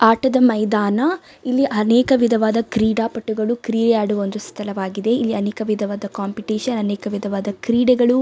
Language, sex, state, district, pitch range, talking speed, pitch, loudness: Kannada, female, Karnataka, Dakshina Kannada, 205-240 Hz, 125 wpm, 220 Hz, -19 LUFS